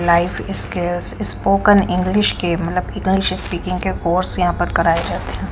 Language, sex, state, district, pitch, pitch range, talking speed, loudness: Hindi, female, Punjab, Kapurthala, 175 Hz, 170-185 Hz, 175 wpm, -18 LUFS